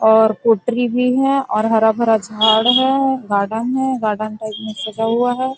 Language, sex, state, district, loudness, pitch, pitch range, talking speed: Hindi, female, Chhattisgarh, Rajnandgaon, -16 LUFS, 225 Hz, 220-250 Hz, 170 wpm